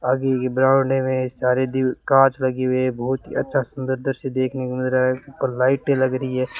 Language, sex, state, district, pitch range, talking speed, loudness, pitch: Hindi, male, Rajasthan, Bikaner, 130-135 Hz, 225 wpm, -21 LUFS, 130 Hz